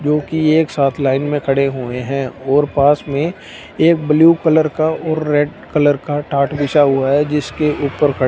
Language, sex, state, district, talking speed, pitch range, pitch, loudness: Hindi, male, Punjab, Fazilka, 190 wpm, 140-155 Hz, 145 Hz, -15 LUFS